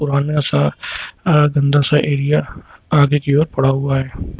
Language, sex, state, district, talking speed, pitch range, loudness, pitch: Hindi, male, Uttar Pradesh, Lucknow, 165 wpm, 135-150 Hz, -16 LUFS, 145 Hz